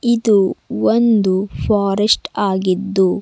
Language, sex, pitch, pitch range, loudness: Kannada, female, 200 Hz, 190-215 Hz, -16 LUFS